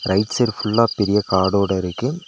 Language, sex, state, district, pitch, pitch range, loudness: Tamil, male, Tamil Nadu, Nilgiris, 105 Hz, 95-115 Hz, -19 LUFS